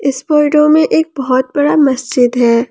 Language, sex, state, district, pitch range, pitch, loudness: Hindi, male, Jharkhand, Ranchi, 255-300 Hz, 275 Hz, -12 LUFS